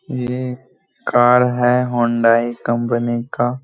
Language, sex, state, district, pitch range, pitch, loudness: Hindi, male, Bihar, Jamui, 120-125 Hz, 120 Hz, -17 LUFS